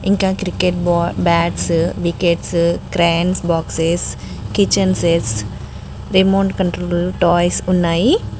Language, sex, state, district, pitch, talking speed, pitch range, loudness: Telugu, female, Telangana, Mahabubabad, 175 Hz, 95 wpm, 170-185 Hz, -16 LUFS